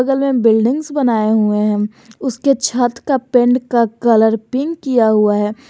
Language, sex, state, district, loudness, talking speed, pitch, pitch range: Hindi, male, Jharkhand, Garhwa, -15 LUFS, 170 wpm, 235 Hz, 220-265 Hz